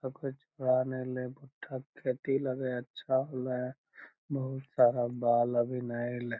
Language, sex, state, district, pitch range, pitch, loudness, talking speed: Magahi, male, Bihar, Lakhisarai, 125-135 Hz, 130 Hz, -33 LUFS, 170 wpm